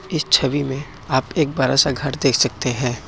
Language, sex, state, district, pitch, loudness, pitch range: Hindi, male, Assam, Kamrup Metropolitan, 135 Hz, -19 LUFS, 130-145 Hz